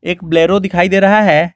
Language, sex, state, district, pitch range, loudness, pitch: Hindi, male, Jharkhand, Garhwa, 165-195 Hz, -11 LUFS, 175 Hz